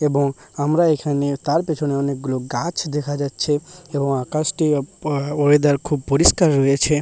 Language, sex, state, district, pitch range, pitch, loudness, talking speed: Bengali, male, West Bengal, Paschim Medinipur, 140-155 Hz, 145 Hz, -19 LUFS, 145 wpm